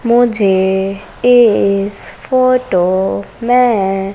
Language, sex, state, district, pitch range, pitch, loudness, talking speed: Hindi, female, Madhya Pradesh, Umaria, 190-245 Hz, 200 Hz, -13 LUFS, 60 wpm